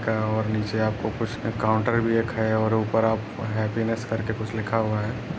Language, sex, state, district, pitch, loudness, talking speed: Hindi, male, Bihar, Jamui, 110 Hz, -25 LUFS, 210 wpm